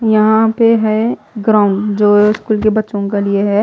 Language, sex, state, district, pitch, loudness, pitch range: Hindi, female, Maharashtra, Mumbai Suburban, 215 Hz, -13 LUFS, 205-220 Hz